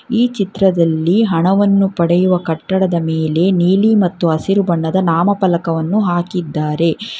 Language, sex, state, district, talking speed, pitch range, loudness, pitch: Kannada, female, Karnataka, Bangalore, 110 wpm, 165-195 Hz, -15 LUFS, 180 Hz